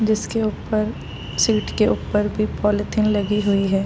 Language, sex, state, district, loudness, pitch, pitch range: Hindi, female, Bihar, Darbhanga, -21 LUFS, 210 Hz, 205-215 Hz